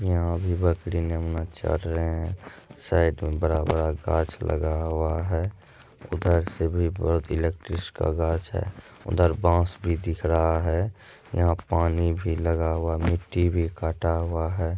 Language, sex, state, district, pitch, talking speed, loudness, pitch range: Maithili, male, Bihar, Madhepura, 85 Hz, 150 wpm, -26 LUFS, 80-90 Hz